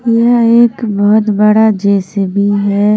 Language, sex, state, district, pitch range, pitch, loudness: Hindi, female, Punjab, Kapurthala, 200-230 Hz, 210 Hz, -10 LUFS